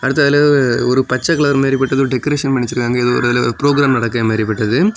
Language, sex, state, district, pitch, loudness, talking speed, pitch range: Tamil, male, Tamil Nadu, Kanyakumari, 130 Hz, -14 LUFS, 195 wpm, 120-140 Hz